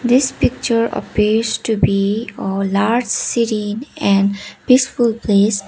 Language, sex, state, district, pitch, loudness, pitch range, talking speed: English, female, Sikkim, Gangtok, 220 Hz, -17 LUFS, 200-235 Hz, 115 wpm